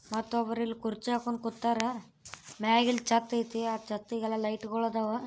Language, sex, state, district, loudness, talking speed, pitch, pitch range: Kannada, female, Karnataka, Bijapur, -31 LUFS, 160 wpm, 230 Hz, 220-235 Hz